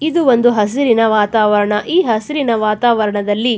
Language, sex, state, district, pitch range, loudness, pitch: Kannada, female, Karnataka, Chamarajanagar, 210-250 Hz, -14 LUFS, 225 Hz